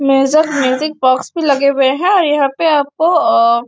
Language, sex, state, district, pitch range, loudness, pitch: Hindi, female, Chhattisgarh, Bastar, 265-310 Hz, -13 LUFS, 280 Hz